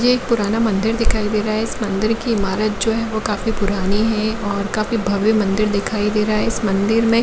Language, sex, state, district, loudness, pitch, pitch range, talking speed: Hindi, female, Jharkhand, Jamtara, -19 LUFS, 215 Hz, 205-225 Hz, 250 wpm